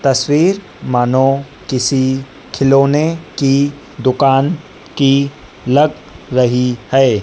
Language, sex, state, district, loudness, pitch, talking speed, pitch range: Hindi, female, Madhya Pradesh, Dhar, -14 LUFS, 135 Hz, 85 wpm, 130-145 Hz